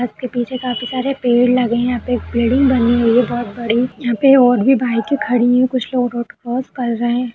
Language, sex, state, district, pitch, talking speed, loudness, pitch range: Hindi, female, Uttar Pradesh, Budaun, 245 Hz, 245 wpm, -16 LUFS, 240-255 Hz